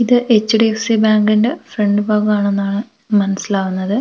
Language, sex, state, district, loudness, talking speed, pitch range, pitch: Malayalam, female, Kerala, Wayanad, -15 LUFS, 180 wpm, 205-225 Hz, 215 Hz